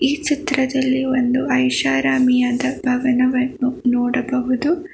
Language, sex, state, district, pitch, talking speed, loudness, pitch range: Kannada, female, Karnataka, Bangalore, 255 Hz, 75 wpm, -18 LUFS, 250-265 Hz